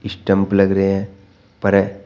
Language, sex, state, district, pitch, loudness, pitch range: Hindi, male, Uttar Pradesh, Shamli, 100 Hz, -17 LUFS, 95-100 Hz